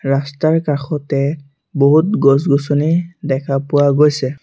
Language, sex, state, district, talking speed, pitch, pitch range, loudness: Assamese, male, Assam, Sonitpur, 110 wpm, 145 Hz, 140-150 Hz, -15 LUFS